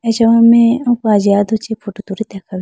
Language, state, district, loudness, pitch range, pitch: Idu Mishmi, Arunachal Pradesh, Lower Dibang Valley, -12 LUFS, 200-230 Hz, 220 Hz